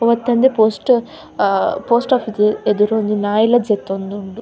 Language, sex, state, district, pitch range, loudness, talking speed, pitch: Tulu, female, Karnataka, Dakshina Kannada, 205-235 Hz, -16 LUFS, 120 wpm, 220 Hz